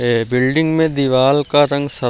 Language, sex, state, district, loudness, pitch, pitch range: Hindi, male, Bihar, Jamui, -15 LUFS, 140 Hz, 125-145 Hz